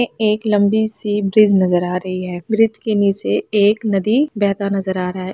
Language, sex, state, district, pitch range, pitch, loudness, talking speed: Hindi, female, Chhattisgarh, Raigarh, 190-215 Hz, 205 Hz, -17 LUFS, 215 wpm